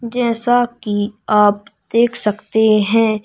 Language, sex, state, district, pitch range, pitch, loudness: Hindi, male, Madhya Pradesh, Bhopal, 210-235 Hz, 220 Hz, -16 LUFS